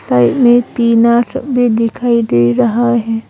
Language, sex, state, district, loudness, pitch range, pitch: Hindi, female, Arunachal Pradesh, Longding, -12 LUFS, 225-240 Hz, 235 Hz